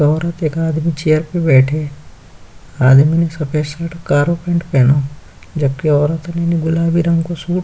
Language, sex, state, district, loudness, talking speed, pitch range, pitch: Hindi, male, Uttar Pradesh, Jyotiba Phule Nagar, -15 LUFS, 165 wpm, 145-170 Hz, 160 Hz